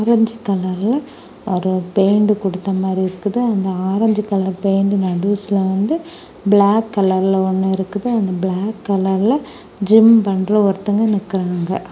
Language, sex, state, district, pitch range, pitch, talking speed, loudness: Tamil, female, Tamil Nadu, Kanyakumari, 190-215 Hz, 195 Hz, 125 wpm, -17 LUFS